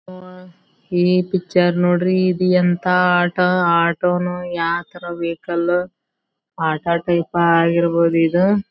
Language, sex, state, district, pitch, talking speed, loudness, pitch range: Kannada, female, Karnataka, Belgaum, 175 Hz, 95 wpm, -17 LUFS, 170-180 Hz